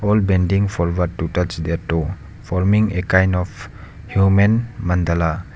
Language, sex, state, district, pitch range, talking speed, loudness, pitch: English, male, Arunachal Pradesh, Lower Dibang Valley, 85-100 Hz, 150 wpm, -19 LUFS, 90 Hz